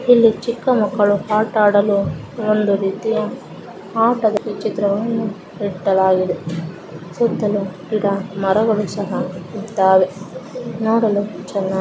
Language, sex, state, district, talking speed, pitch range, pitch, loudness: Kannada, female, Karnataka, Mysore, 90 wpm, 190-220 Hz, 205 Hz, -18 LUFS